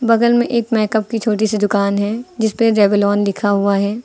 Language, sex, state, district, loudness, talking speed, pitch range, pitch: Hindi, female, Uttar Pradesh, Lucknow, -16 LUFS, 205 wpm, 205-230 Hz, 215 Hz